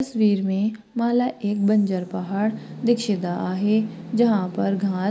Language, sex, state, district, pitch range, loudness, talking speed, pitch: Hindi, female, Maharashtra, Pune, 195-220 Hz, -23 LUFS, 130 wpm, 205 Hz